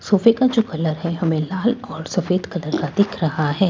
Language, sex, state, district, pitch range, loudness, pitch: Hindi, female, Bihar, Katihar, 160-215 Hz, -20 LUFS, 180 Hz